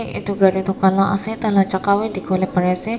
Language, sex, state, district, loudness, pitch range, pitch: Nagamese, female, Nagaland, Kohima, -18 LUFS, 190-200 Hz, 195 Hz